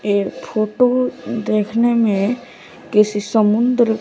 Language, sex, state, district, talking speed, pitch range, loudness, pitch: Hindi, male, Bihar, West Champaran, 90 wpm, 210-240 Hz, -17 LUFS, 220 Hz